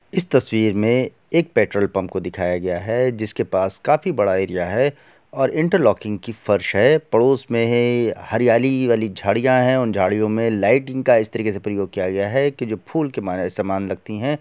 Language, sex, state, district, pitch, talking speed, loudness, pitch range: Hindi, male, Bihar, Gopalganj, 115 Hz, 210 wpm, -19 LUFS, 100-130 Hz